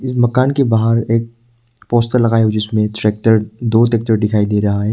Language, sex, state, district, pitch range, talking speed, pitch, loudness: Hindi, male, Arunachal Pradesh, Papum Pare, 110-120 Hz, 205 wpm, 115 Hz, -15 LUFS